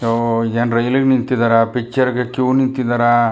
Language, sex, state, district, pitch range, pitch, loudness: Kannada, male, Karnataka, Chamarajanagar, 115-130 Hz, 120 Hz, -16 LUFS